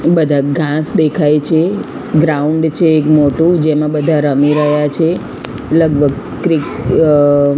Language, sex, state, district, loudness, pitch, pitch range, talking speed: Gujarati, female, Gujarat, Gandhinagar, -12 LUFS, 155 Hz, 145-160 Hz, 125 wpm